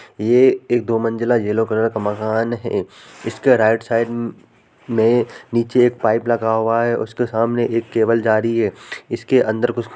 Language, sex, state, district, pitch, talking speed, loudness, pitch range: Hindi, male, Bihar, Darbhanga, 115 Hz, 175 wpm, -18 LUFS, 110-120 Hz